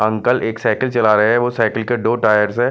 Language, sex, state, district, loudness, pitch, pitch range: Hindi, male, Chandigarh, Chandigarh, -16 LUFS, 115 Hz, 110-120 Hz